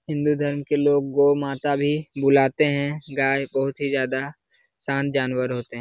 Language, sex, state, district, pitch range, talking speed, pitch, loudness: Hindi, male, Uttar Pradesh, Jalaun, 135-145 Hz, 175 wpm, 140 Hz, -22 LUFS